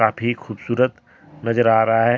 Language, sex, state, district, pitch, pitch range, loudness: Hindi, male, Jharkhand, Deoghar, 115 Hz, 110-120 Hz, -20 LUFS